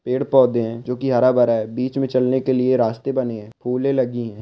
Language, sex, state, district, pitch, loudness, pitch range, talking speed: Hindi, male, Chhattisgarh, Korba, 125 Hz, -19 LUFS, 120-130 Hz, 230 wpm